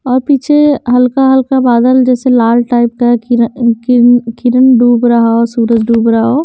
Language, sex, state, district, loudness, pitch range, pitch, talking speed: Hindi, female, Haryana, Jhajjar, -9 LUFS, 235-255 Hz, 240 Hz, 165 wpm